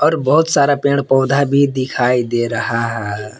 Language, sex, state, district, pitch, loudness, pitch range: Hindi, male, Jharkhand, Palamu, 130 Hz, -15 LUFS, 115-140 Hz